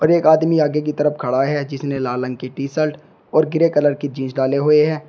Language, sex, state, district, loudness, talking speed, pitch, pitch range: Hindi, male, Uttar Pradesh, Shamli, -18 LUFS, 250 wpm, 150 Hz, 135-155 Hz